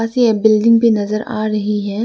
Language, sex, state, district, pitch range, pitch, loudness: Hindi, female, Arunachal Pradesh, Lower Dibang Valley, 210-230 Hz, 215 Hz, -15 LUFS